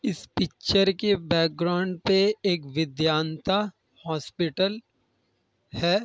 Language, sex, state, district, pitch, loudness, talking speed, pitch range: Hindi, male, Bihar, Kishanganj, 170 Hz, -25 LUFS, 90 wpm, 155-195 Hz